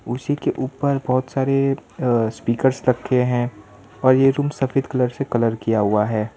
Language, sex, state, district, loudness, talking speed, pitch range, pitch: Hindi, male, Gujarat, Valsad, -20 LUFS, 180 wpm, 115-135 Hz, 125 Hz